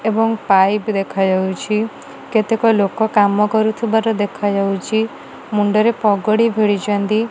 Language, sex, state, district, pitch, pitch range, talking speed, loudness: Odia, female, Odisha, Malkangiri, 215 Hz, 205-220 Hz, 105 wpm, -17 LUFS